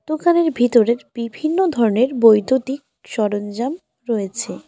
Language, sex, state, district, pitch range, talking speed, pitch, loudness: Bengali, female, West Bengal, Alipurduar, 225-290 Hz, 90 wpm, 245 Hz, -18 LUFS